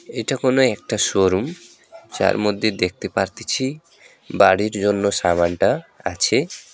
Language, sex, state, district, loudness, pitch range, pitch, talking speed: Bengali, male, West Bengal, Alipurduar, -19 LUFS, 95-130 Hz, 105 Hz, 105 wpm